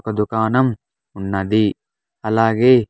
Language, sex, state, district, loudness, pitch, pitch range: Telugu, male, Andhra Pradesh, Sri Satya Sai, -18 LUFS, 110 Hz, 105-115 Hz